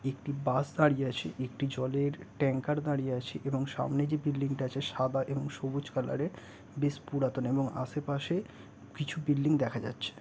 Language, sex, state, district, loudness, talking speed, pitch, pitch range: Bengali, male, West Bengal, Purulia, -33 LUFS, 160 wpm, 140 Hz, 130-145 Hz